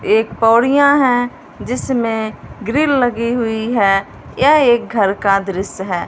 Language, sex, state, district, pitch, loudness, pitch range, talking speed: Hindi, female, Punjab, Fazilka, 230 Hz, -15 LUFS, 200-260 Hz, 140 wpm